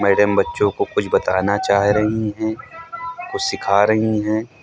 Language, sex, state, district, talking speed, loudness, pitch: Hindi, male, Uttar Pradesh, Hamirpur, 155 wpm, -18 LUFS, 110 Hz